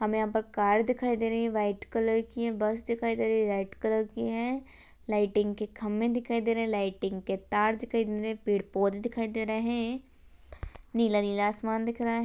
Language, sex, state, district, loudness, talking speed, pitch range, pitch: Hindi, female, Rajasthan, Churu, -30 LUFS, 225 wpm, 205-230 Hz, 220 Hz